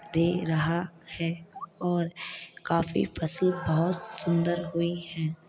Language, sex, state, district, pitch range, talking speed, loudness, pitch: Hindi, female, Uttar Pradesh, Hamirpur, 165-175 Hz, 110 wpm, -28 LUFS, 170 Hz